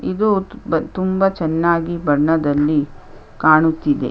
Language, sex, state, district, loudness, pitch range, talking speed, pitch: Kannada, female, Karnataka, Chamarajanagar, -17 LUFS, 150-190 Hz, 90 wpm, 160 Hz